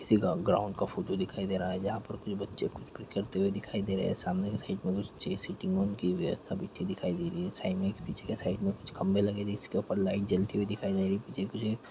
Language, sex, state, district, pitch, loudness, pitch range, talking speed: Hindi, male, Chhattisgarh, Jashpur, 100 Hz, -33 LUFS, 95-105 Hz, 280 wpm